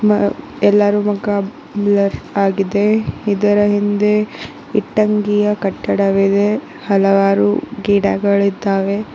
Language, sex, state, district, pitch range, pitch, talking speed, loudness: Kannada, female, Karnataka, Koppal, 200-210 Hz, 205 Hz, 80 wpm, -16 LUFS